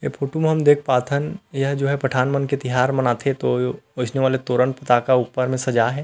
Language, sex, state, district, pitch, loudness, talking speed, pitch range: Chhattisgarhi, male, Chhattisgarh, Rajnandgaon, 130 Hz, -20 LUFS, 210 wpm, 125-140 Hz